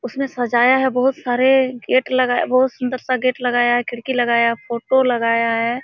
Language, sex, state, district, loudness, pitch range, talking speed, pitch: Hindi, female, Jharkhand, Sahebganj, -17 LUFS, 240-255 Hz, 195 wpm, 250 Hz